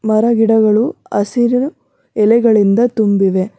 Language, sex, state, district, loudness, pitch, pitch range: Kannada, female, Karnataka, Bangalore, -13 LUFS, 220 Hz, 205-235 Hz